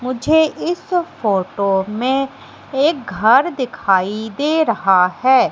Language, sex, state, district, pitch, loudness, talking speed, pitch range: Hindi, female, Madhya Pradesh, Katni, 255 Hz, -17 LUFS, 110 wpm, 200-300 Hz